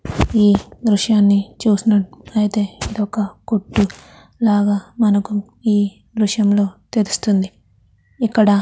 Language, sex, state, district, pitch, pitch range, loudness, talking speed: Telugu, female, Andhra Pradesh, Krishna, 205 Hz, 200-215 Hz, -18 LUFS, 95 wpm